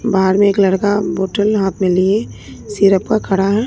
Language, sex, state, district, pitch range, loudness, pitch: Hindi, female, Bihar, Katihar, 190-205 Hz, -15 LUFS, 200 Hz